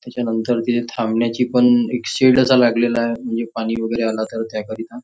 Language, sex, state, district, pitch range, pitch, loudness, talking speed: Marathi, male, Maharashtra, Nagpur, 115-120 Hz, 115 Hz, -18 LUFS, 165 wpm